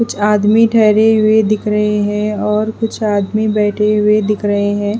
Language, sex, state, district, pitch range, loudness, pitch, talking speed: Hindi, female, Bihar, West Champaran, 210-215 Hz, -13 LUFS, 210 Hz, 180 wpm